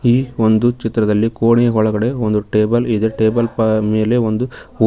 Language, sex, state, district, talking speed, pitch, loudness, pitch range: Kannada, male, Karnataka, Koppal, 170 wpm, 110 Hz, -16 LUFS, 110-120 Hz